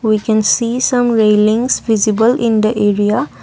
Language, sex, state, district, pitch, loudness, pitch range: English, female, Assam, Kamrup Metropolitan, 220 Hz, -13 LUFS, 215-235 Hz